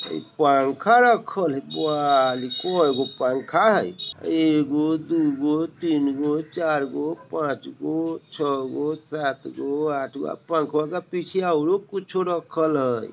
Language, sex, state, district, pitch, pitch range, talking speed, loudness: Bajjika, male, Bihar, Vaishali, 150 Hz, 140-165 Hz, 145 wpm, -23 LUFS